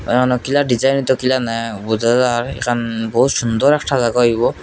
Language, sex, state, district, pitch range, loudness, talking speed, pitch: Bengali, male, Assam, Hailakandi, 115-130 Hz, -16 LUFS, 155 wpm, 120 Hz